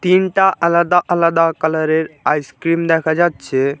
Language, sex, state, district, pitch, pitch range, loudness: Bengali, male, West Bengal, Alipurduar, 165 Hz, 160-175 Hz, -15 LUFS